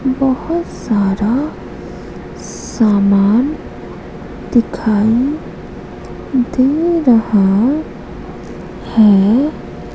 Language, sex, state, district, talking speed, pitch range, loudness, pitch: Hindi, female, Madhya Pradesh, Katni, 40 wpm, 210-275 Hz, -14 LUFS, 240 Hz